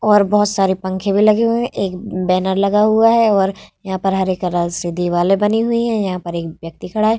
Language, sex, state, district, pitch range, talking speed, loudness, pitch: Hindi, female, Bihar, Vaishali, 185-215 Hz, 250 wpm, -16 LUFS, 195 Hz